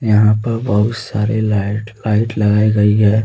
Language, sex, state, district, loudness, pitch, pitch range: Hindi, male, Jharkhand, Deoghar, -15 LUFS, 105 Hz, 105-110 Hz